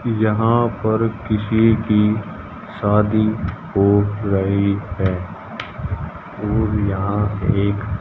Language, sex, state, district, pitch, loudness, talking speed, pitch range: Hindi, male, Haryana, Jhajjar, 105 Hz, -19 LUFS, 80 wpm, 100-110 Hz